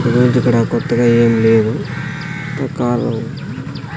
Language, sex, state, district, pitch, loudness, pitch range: Telugu, male, Andhra Pradesh, Sri Satya Sai, 125 Hz, -16 LUFS, 120-140 Hz